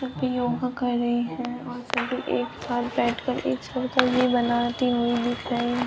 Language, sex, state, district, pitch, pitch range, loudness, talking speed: Hindi, male, Bihar, Katihar, 245 Hz, 240-250 Hz, -25 LUFS, 185 wpm